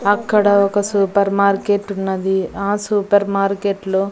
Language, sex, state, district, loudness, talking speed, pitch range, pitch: Telugu, female, Andhra Pradesh, Annamaya, -17 LUFS, 115 wpm, 195-205 Hz, 200 Hz